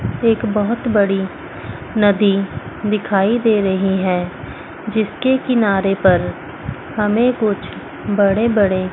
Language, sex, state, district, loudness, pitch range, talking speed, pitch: Hindi, female, Chandigarh, Chandigarh, -17 LUFS, 195-220 Hz, 100 wpm, 205 Hz